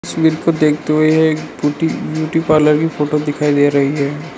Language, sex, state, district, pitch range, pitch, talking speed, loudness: Hindi, male, Arunachal Pradesh, Lower Dibang Valley, 150-160 Hz, 155 Hz, 190 wpm, -15 LUFS